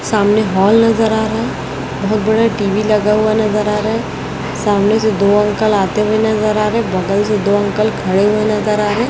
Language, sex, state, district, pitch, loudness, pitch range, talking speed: Hindi, male, Chhattisgarh, Raipur, 210 Hz, -14 LUFS, 205-220 Hz, 200 wpm